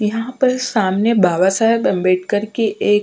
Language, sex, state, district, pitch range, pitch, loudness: Hindi, female, Uttarakhand, Tehri Garhwal, 190-230 Hz, 210 Hz, -16 LUFS